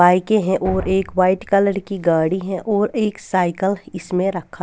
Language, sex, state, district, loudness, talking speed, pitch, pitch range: Hindi, female, Bihar, West Champaran, -19 LUFS, 180 wpm, 190 Hz, 180-200 Hz